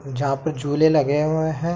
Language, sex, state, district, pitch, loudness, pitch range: Hindi, male, Uttar Pradesh, Etah, 150 Hz, -21 LUFS, 140-160 Hz